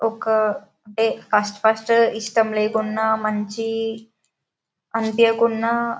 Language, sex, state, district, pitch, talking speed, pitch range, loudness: Telugu, female, Telangana, Karimnagar, 220 Hz, 80 wpm, 215-225 Hz, -20 LUFS